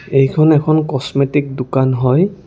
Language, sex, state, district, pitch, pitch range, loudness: Assamese, male, Assam, Kamrup Metropolitan, 140 Hz, 130-155 Hz, -14 LUFS